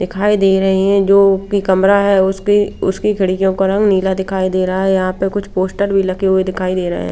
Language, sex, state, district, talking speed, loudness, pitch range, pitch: Hindi, female, Bihar, Katihar, 235 wpm, -14 LUFS, 190-200 Hz, 190 Hz